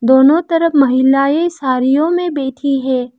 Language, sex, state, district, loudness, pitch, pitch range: Hindi, female, Arunachal Pradesh, Lower Dibang Valley, -13 LUFS, 275 Hz, 260-320 Hz